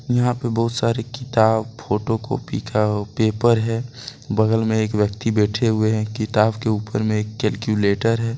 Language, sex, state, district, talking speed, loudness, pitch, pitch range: Hindi, male, Jharkhand, Deoghar, 170 wpm, -20 LUFS, 110 Hz, 110-115 Hz